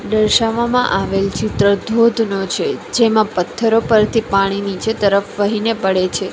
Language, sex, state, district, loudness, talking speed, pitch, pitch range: Gujarati, female, Gujarat, Valsad, -16 LUFS, 130 wpm, 210 Hz, 195-225 Hz